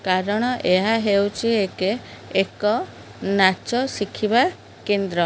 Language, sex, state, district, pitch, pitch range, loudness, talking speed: Odia, female, Odisha, Khordha, 205 Hz, 190-225 Hz, -21 LUFS, 80 wpm